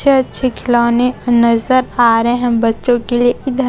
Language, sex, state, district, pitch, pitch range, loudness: Hindi, female, Chhattisgarh, Raipur, 245 Hz, 235-255 Hz, -13 LUFS